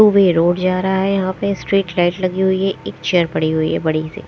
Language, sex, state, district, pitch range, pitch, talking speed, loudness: Hindi, female, Himachal Pradesh, Shimla, 175-195 Hz, 185 Hz, 280 wpm, -17 LUFS